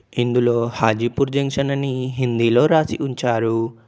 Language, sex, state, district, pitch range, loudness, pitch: Telugu, male, Telangana, Komaram Bheem, 115-140 Hz, -19 LUFS, 125 Hz